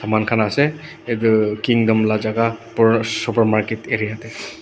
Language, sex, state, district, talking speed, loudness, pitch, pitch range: Nagamese, male, Nagaland, Dimapur, 145 wpm, -18 LUFS, 110 Hz, 110-115 Hz